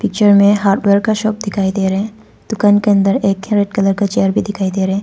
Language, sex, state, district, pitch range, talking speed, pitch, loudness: Hindi, female, Arunachal Pradesh, Papum Pare, 195-210 Hz, 260 wpm, 200 Hz, -14 LUFS